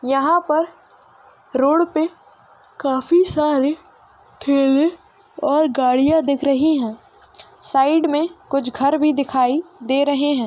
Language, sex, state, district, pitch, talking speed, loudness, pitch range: Hindi, female, Uttar Pradesh, Jyotiba Phule Nagar, 290 Hz, 125 wpm, -18 LUFS, 275-325 Hz